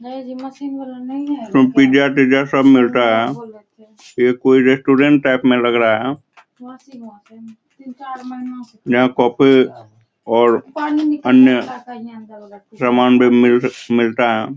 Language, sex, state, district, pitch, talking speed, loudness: Hindi, male, Bihar, Araria, 140 Hz, 115 wpm, -14 LUFS